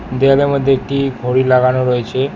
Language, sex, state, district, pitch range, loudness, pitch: Bengali, male, West Bengal, Alipurduar, 125-135 Hz, -14 LUFS, 130 Hz